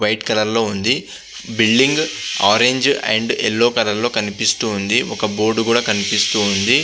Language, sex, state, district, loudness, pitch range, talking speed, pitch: Telugu, male, Andhra Pradesh, Visakhapatnam, -16 LUFS, 105-120 Hz, 115 wpm, 110 Hz